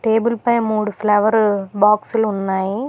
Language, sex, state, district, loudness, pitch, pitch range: Telugu, female, Telangana, Hyderabad, -17 LUFS, 215 Hz, 205-225 Hz